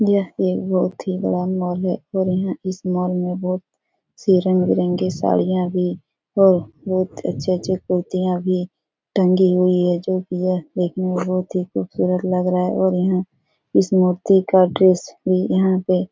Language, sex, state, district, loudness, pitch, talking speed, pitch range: Hindi, female, Bihar, Supaul, -19 LUFS, 185 Hz, 165 wpm, 180-185 Hz